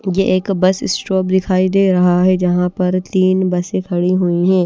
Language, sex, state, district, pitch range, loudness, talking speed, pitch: Hindi, female, Odisha, Nuapada, 180-190 Hz, -15 LUFS, 195 wpm, 185 Hz